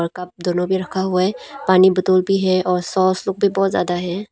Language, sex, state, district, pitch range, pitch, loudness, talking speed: Hindi, female, Arunachal Pradesh, Papum Pare, 180-195 Hz, 185 Hz, -18 LUFS, 250 wpm